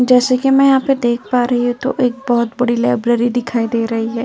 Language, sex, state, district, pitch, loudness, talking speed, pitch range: Hindi, female, Uttar Pradesh, Etah, 245 Hz, -15 LUFS, 255 wpm, 235-255 Hz